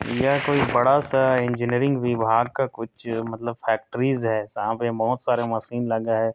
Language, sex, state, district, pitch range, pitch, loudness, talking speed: Hindi, male, Chhattisgarh, Korba, 115-130 Hz, 120 Hz, -23 LUFS, 160 wpm